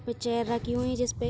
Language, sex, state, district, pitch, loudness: Hindi, female, Uttar Pradesh, Hamirpur, 125 Hz, -29 LUFS